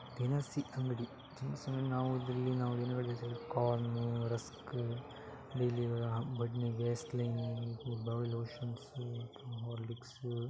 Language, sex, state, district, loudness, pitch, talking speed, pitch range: Kannada, male, Karnataka, Dakshina Kannada, -39 LUFS, 120 Hz, 70 wpm, 120-130 Hz